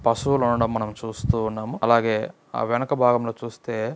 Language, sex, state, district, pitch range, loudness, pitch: Telugu, male, Andhra Pradesh, Anantapur, 110-120 Hz, -23 LUFS, 115 Hz